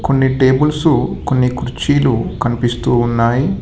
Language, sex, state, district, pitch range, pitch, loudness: Telugu, male, Telangana, Hyderabad, 120-145 Hz, 130 Hz, -15 LUFS